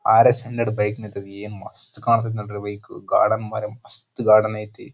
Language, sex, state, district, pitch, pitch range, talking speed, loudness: Kannada, male, Karnataka, Dharwad, 110 Hz, 105-115 Hz, 180 wpm, -21 LUFS